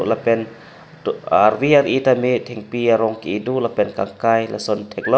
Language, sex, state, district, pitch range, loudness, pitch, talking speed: Karbi, male, Assam, Karbi Anglong, 110-125 Hz, -18 LUFS, 115 Hz, 160 wpm